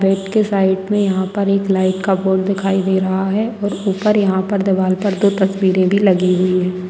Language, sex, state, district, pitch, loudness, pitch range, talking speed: Hindi, female, Bihar, Jamui, 195 Hz, -16 LUFS, 190-200 Hz, 225 wpm